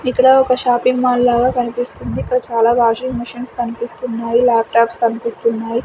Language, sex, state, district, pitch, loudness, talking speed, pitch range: Telugu, female, Andhra Pradesh, Sri Satya Sai, 240 Hz, -16 LUFS, 135 wpm, 230-250 Hz